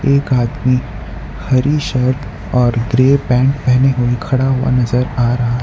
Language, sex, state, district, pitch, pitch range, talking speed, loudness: Hindi, male, Gujarat, Valsad, 125 Hz, 120-130 Hz, 150 wpm, -15 LUFS